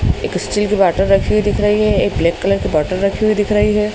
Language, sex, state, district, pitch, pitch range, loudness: Hindi, male, Madhya Pradesh, Bhopal, 205 Hz, 195-210 Hz, -15 LUFS